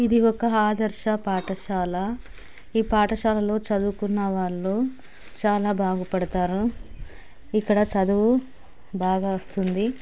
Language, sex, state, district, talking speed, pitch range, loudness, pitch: Telugu, female, Andhra Pradesh, Chittoor, 90 wpm, 190-220 Hz, -24 LUFS, 205 Hz